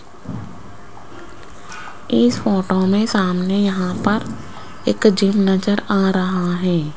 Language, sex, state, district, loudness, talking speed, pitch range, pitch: Hindi, female, Rajasthan, Jaipur, -18 LUFS, 105 wpm, 120-195 Hz, 185 Hz